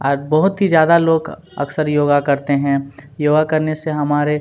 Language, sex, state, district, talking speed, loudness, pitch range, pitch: Hindi, male, Chhattisgarh, Kabirdham, 175 wpm, -16 LUFS, 145-160 Hz, 150 Hz